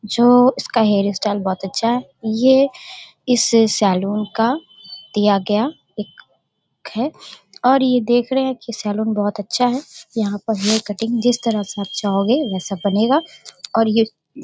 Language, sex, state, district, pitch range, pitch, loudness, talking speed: Hindi, female, Bihar, Darbhanga, 205-250 Hz, 225 Hz, -18 LUFS, 160 wpm